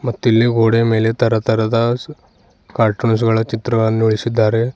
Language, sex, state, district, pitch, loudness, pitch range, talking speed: Kannada, male, Karnataka, Bidar, 115 Hz, -16 LUFS, 110-120 Hz, 125 wpm